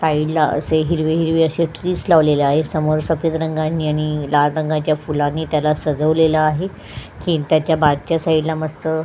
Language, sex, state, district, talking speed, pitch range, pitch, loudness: Marathi, female, Goa, North and South Goa, 155 wpm, 150-160 Hz, 155 Hz, -18 LUFS